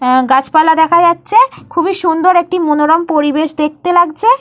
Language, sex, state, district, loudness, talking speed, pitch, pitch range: Bengali, female, Jharkhand, Jamtara, -11 LUFS, 150 wpm, 330 Hz, 300-350 Hz